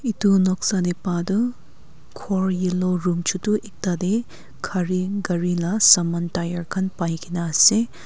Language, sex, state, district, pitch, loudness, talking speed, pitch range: Nagamese, female, Nagaland, Kohima, 185 Hz, -21 LUFS, 135 wpm, 175-200 Hz